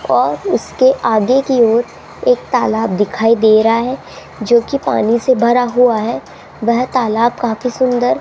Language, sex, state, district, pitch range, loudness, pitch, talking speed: Hindi, female, Rajasthan, Jaipur, 225-255 Hz, -14 LUFS, 235 Hz, 160 wpm